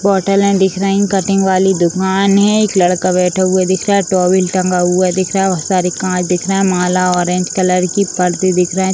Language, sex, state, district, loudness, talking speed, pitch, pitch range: Hindi, female, Bihar, Vaishali, -13 LUFS, 230 wpm, 185 Hz, 180-195 Hz